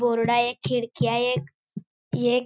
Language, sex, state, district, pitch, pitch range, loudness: Marathi, female, Maharashtra, Chandrapur, 240 Hz, 195-240 Hz, -24 LUFS